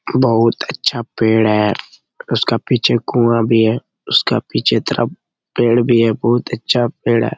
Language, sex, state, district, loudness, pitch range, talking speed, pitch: Hindi, male, Bihar, Jamui, -15 LUFS, 115-120 Hz, 155 wpm, 115 Hz